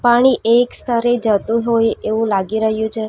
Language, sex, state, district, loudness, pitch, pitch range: Gujarati, female, Gujarat, Valsad, -16 LUFS, 225 Hz, 220-240 Hz